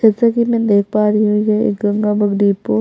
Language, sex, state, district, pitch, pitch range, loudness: Hindi, female, Chhattisgarh, Jashpur, 210 Hz, 205-220 Hz, -15 LUFS